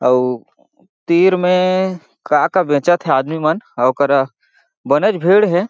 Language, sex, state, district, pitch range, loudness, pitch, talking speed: Chhattisgarhi, male, Chhattisgarh, Jashpur, 135-185 Hz, -15 LUFS, 170 Hz, 135 wpm